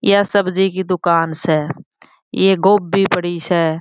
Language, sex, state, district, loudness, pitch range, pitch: Marwari, female, Rajasthan, Churu, -16 LUFS, 170-195 Hz, 185 Hz